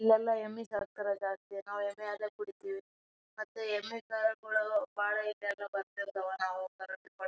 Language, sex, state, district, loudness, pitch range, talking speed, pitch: Kannada, female, Karnataka, Raichur, -36 LUFS, 200-220 Hz, 115 wpm, 210 Hz